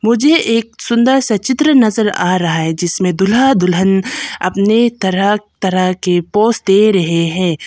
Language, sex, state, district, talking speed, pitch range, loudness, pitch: Hindi, female, Arunachal Pradesh, Papum Pare, 155 wpm, 180-230 Hz, -13 LUFS, 200 Hz